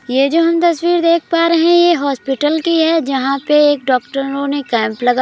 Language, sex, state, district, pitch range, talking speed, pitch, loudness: Hindi, female, Uttar Pradesh, Gorakhpur, 270-335 Hz, 230 wpm, 295 Hz, -14 LUFS